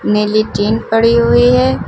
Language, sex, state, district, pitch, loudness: Hindi, female, Uttar Pradesh, Lucknow, 210 Hz, -12 LUFS